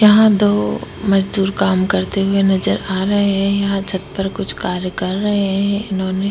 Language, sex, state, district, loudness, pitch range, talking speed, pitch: Hindi, female, Maharashtra, Chandrapur, -17 LUFS, 190-200 Hz, 180 wpm, 195 Hz